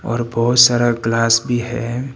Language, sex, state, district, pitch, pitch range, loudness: Hindi, male, Arunachal Pradesh, Papum Pare, 120 Hz, 115-120 Hz, -15 LUFS